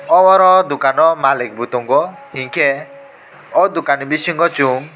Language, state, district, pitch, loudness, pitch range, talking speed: Kokborok, Tripura, West Tripura, 155 Hz, -14 LUFS, 135-185 Hz, 135 wpm